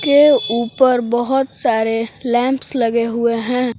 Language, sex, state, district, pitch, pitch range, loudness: Hindi, female, Jharkhand, Palamu, 240 Hz, 230-260 Hz, -16 LUFS